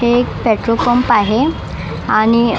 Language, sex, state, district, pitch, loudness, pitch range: Marathi, female, Maharashtra, Mumbai Suburban, 235 Hz, -14 LUFS, 225-245 Hz